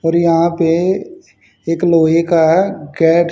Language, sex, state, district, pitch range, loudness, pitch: Hindi, male, Haryana, Jhajjar, 165-175 Hz, -14 LUFS, 170 Hz